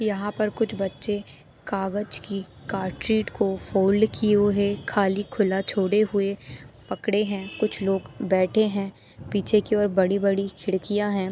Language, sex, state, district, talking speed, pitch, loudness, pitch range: Hindi, female, Chhattisgarh, Jashpur, 150 wpm, 200 Hz, -24 LUFS, 190-210 Hz